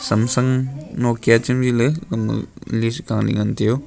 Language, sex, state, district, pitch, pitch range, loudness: Wancho, male, Arunachal Pradesh, Longding, 115 Hz, 110-125 Hz, -20 LUFS